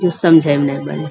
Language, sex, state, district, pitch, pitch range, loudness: Angika, female, Bihar, Bhagalpur, 145 Hz, 135-165 Hz, -14 LUFS